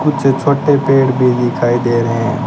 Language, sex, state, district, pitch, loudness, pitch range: Hindi, male, Rajasthan, Bikaner, 130 Hz, -13 LUFS, 120-140 Hz